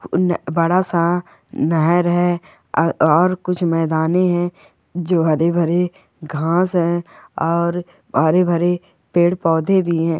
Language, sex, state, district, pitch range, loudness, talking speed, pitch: Hindi, female, Jharkhand, Sahebganj, 165-180 Hz, -18 LUFS, 125 wpm, 175 Hz